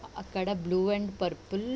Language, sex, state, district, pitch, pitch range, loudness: Telugu, female, Andhra Pradesh, Visakhapatnam, 195 Hz, 185-205 Hz, -31 LUFS